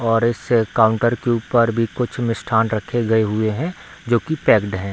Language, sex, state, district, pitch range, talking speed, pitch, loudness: Hindi, male, Bihar, Darbhanga, 110-120 Hz, 195 wpm, 115 Hz, -19 LUFS